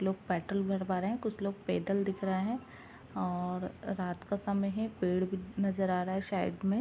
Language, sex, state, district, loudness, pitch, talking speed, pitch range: Hindi, female, Uttar Pradesh, Ghazipur, -34 LUFS, 195 Hz, 210 wpm, 185-200 Hz